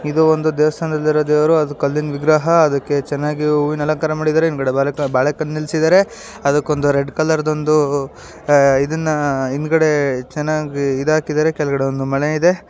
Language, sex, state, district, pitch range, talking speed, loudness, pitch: Kannada, female, Karnataka, Shimoga, 145-155 Hz, 155 wpm, -17 LUFS, 150 Hz